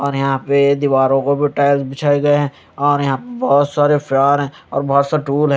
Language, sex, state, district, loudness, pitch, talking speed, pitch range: Hindi, male, Chandigarh, Chandigarh, -16 LUFS, 140 Hz, 205 wpm, 140-145 Hz